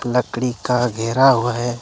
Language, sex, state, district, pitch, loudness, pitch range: Hindi, male, Jharkhand, Deoghar, 120 Hz, -18 LUFS, 120-125 Hz